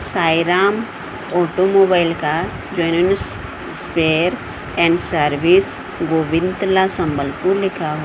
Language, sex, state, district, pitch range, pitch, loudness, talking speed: Hindi, female, Odisha, Sambalpur, 160-185 Hz, 170 Hz, -17 LUFS, 80 wpm